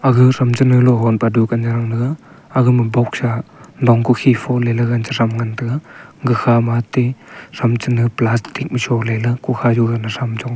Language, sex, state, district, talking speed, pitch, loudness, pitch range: Wancho, male, Arunachal Pradesh, Longding, 160 wpm, 120 Hz, -16 LUFS, 115-125 Hz